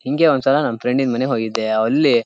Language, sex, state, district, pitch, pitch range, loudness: Kannada, male, Karnataka, Shimoga, 115 Hz, 110-125 Hz, -18 LUFS